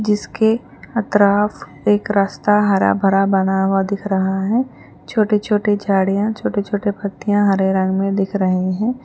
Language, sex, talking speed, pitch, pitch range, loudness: Urdu, female, 160 wpm, 200 Hz, 195-210 Hz, -17 LUFS